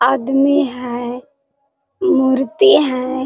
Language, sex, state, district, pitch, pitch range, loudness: Hindi, female, Jharkhand, Sahebganj, 270 Hz, 255-285 Hz, -15 LUFS